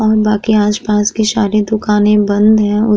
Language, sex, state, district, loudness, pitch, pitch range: Hindi, female, Uttar Pradesh, Muzaffarnagar, -12 LUFS, 210 Hz, 210-215 Hz